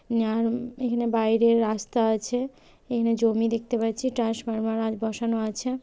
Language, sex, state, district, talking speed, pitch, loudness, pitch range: Bengali, female, West Bengal, Malda, 135 wpm, 230 Hz, -25 LUFS, 225-240 Hz